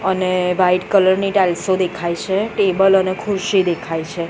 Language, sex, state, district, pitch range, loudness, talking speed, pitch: Gujarati, female, Gujarat, Gandhinagar, 180-195 Hz, -17 LUFS, 165 wpm, 185 Hz